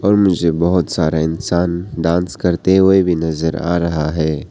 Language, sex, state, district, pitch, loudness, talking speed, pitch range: Hindi, male, Arunachal Pradesh, Papum Pare, 85 Hz, -16 LUFS, 160 wpm, 80-90 Hz